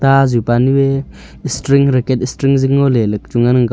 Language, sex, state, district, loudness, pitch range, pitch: Wancho, male, Arunachal Pradesh, Longding, -14 LUFS, 120-135 Hz, 130 Hz